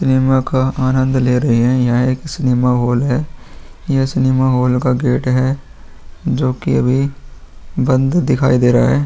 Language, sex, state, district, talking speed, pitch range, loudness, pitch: Hindi, male, Bihar, Vaishali, 165 wpm, 125-135 Hz, -15 LUFS, 130 Hz